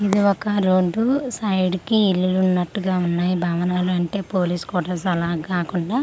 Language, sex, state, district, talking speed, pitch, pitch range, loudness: Telugu, female, Andhra Pradesh, Manyam, 160 wpm, 185 Hz, 180-200 Hz, -21 LUFS